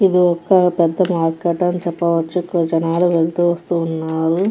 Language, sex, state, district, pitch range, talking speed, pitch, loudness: Telugu, female, Andhra Pradesh, Krishna, 165-180 Hz, 135 wpm, 170 Hz, -17 LUFS